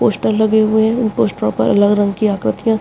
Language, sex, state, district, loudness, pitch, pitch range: Hindi, female, Uttarakhand, Uttarkashi, -15 LUFS, 215 Hz, 205-220 Hz